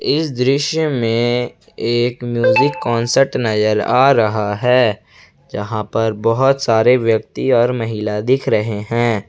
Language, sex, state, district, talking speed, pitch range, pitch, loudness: Hindi, male, Jharkhand, Ranchi, 130 wpm, 110-125 Hz, 120 Hz, -16 LUFS